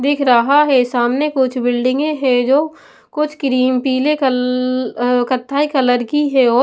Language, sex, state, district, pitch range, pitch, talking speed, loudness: Hindi, female, Punjab, Pathankot, 250-285 Hz, 260 Hz, 165 wpm, -15 LUFS